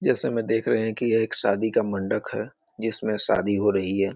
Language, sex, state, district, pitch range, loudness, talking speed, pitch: Hindi, male, Bihar, Muzaffarpur, 100-115 Hz, -23 LUFS, 245 wpm, 110 Hz